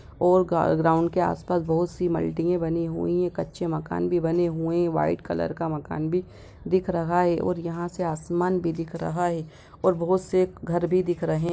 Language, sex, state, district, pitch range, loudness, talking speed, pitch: Hindi, female, Bihar, Sitamarhi, 165-175 Hz, -25 LUFS, 215 wpm, 170 Hz